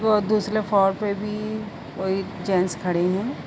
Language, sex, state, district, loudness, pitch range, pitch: Hindi, female, Uttar Pradesh, Budaun, -24 LUFS, 185-215 Hz, 200 Hz